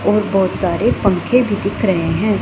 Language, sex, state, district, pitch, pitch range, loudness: Hindi, female, Punjab, Pathankot, 205 Hz, 190-210 Hz, -16 LUFS